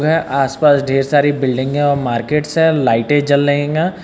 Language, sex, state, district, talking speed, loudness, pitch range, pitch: Hindi, male, Uttar Pradesh, Lucknow, 180 wpm, -15 LUFS, 135-150 Hz, 145 Hz